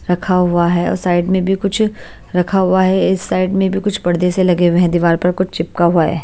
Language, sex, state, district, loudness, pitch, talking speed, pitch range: Hindi, female, Haryana, Jhajjar, -15 LUFS, 180 Hz, 260 wpm, 175-190 Hz